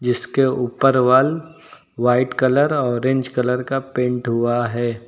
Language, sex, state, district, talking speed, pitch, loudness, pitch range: Hindi, male, Uttar Pradesh, Lucknow, 130 wpm, 125 Hz, -18 LUFS, 125-135 Hz